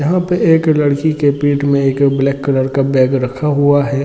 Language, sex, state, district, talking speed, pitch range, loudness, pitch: Hindi, male, Chhattisgarh, Bilaspur, 220 wpm, 135-150 Hz, -14 LUFS, 140 Hz